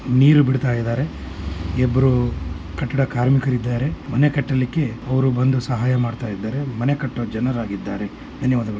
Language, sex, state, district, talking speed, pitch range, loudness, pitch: Kannada, male, Karnataka, Mysore, 135 wpm, 115-135 Hz, -21 LUFS, 125 Hz